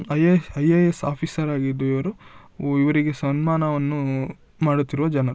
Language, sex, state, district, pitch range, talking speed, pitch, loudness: Kannada, male, Karnataka, Shimoga, 140-160 Hz, 125 wpm, 145 Hz, -22 LUFS